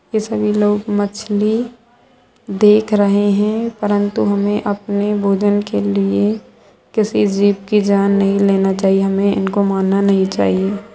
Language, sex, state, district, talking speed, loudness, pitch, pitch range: Hindi, female, Bihar, Sitamarhi, 135 wpm, -16 LUFS, 205 Hz, 195-210 Hz